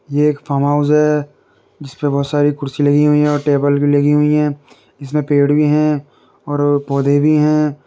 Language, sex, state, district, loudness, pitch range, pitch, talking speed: Hindi, male, Uttar Pradesh, Muzaffarnagar, -15 LUFS, 145-150 Hz, 145 Hz, 205 wpm